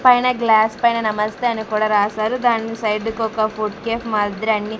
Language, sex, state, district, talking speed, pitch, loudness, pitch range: Telugu, female, Andhra Pradesh, Sri Satya Sai, 200 wpm, 220 Hz, -19 LUFS, 215-230 Hz